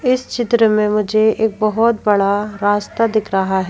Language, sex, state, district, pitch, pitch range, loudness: Hindi, female, Madhya Pradesh, Bhopal, 215 Hz, 205-225 Hz, -16 LUFS